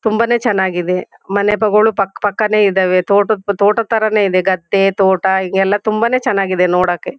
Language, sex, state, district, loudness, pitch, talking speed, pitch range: Kannada, female, Karnataka, Shimoga, -14 LUFS, 200 Hz, 160 wpm, 190-215 Hz